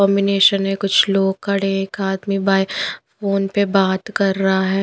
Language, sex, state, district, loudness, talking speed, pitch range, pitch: Hindi, female, Punjab, Pathankot, -18 LUFS, 185 wpm, 195-200 Hz, 195 Hz